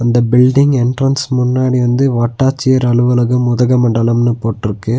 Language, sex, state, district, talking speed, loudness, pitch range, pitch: Tamil, male, Tamil Nadu, Nilgiris, 110 wpm, -13 LUFS, 120-130 Hz, 125 Hz